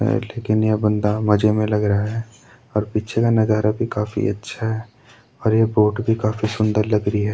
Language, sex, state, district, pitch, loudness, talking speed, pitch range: Hindi, male, Uttarakhand, Tehri Garhwal, 110 Hz, -20 LUFS, 195 wpm, 105-115 Hz